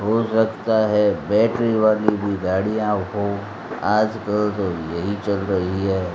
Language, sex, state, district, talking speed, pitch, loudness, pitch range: Hindi, male, Rajasthan, Bikaner, 135 wpm, 105 Hz, -21 LUFS, 95-110 Hz